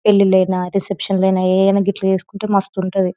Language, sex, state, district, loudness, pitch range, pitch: Telugu, female, Telangana, Nalgonda, -16 LUFS, 185-195 Hz, 190 Hz